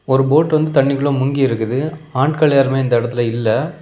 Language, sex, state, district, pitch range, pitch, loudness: Tamil, male, Tamil Nadu, Kanyakumari, 130-155 Hz, 135 Hz, -16 LUFS